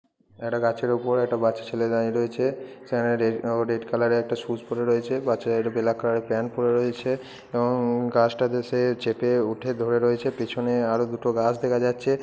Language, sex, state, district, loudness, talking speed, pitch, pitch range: Bengali, male, West Bengal, Purulia, -25 LUFS, 190 wpm, 120 Hz, 115-125 Hz